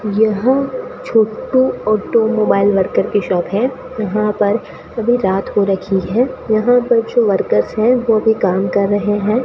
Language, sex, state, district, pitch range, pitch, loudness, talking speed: Hindi, female, Rajasthan, Bikaner, 200-240 Hz, 215 Hz, -15 LUFS, 145 wpm